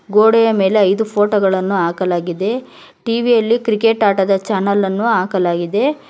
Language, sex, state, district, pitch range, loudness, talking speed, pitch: Kannada, female, Karnataka, Bangalore, 190-225 Hz, -15 LUFS, 130 wpm, 205 Hz